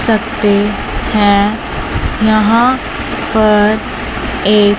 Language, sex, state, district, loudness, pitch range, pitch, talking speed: Hindi, male, Chandigarh, Chandigarh, -13 LUFS, 205-220 Hz, 215 Hz, 65 wpm